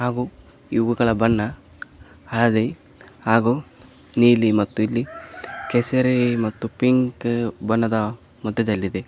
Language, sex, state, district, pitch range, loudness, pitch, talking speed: Kannada, male, Karnataka, Koppal, 110-125 Hz, -21 LUFS, 115 Hz, 85 wpm